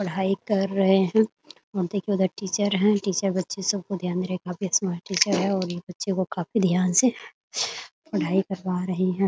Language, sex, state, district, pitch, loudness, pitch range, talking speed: Hindi, female, Bihar, Muzaffarpur, 190 Hz, -25 LUFS, 185-200 Hz, 215 wpm